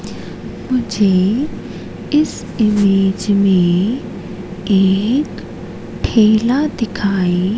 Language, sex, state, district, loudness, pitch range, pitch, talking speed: Hindi, female, Madhya Pradesh, Katni, -15 LUFS, 190-230 Hz, 200 Hz, 55 wpm